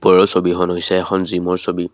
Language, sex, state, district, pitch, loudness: Assamese, male, Assam, Kamrup Metropolitan, 90 Hz, -16 LUFS